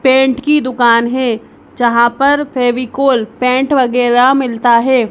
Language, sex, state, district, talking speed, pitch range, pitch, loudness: Hindi, male, Madhya Pradesh, Bhopal, 130 wpm, 240-265 Hz, 250 Hz, -12 LUFS